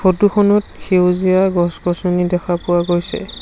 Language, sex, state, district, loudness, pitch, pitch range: Assamese, male, Assam, Sonitpur, -16 LUFS, 180 Hz, 175-190 Hz